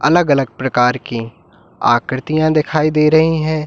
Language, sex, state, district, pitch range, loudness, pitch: Hindi, male, Uttar Pradesh, Lalitpur, 130-155 Hz, -15 LUFS, 150 Hz